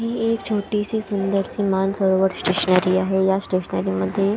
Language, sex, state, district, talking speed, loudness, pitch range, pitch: Marathi, female, Maharashtra, Chandrapur, 150 wpm, -21 LUFS, 185-205 Hz, 195 Hz